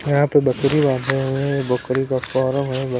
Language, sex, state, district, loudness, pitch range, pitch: Hindi, male, Maharashtra, Washim, -19 LUFS, 130-140 Hz, 135 Hz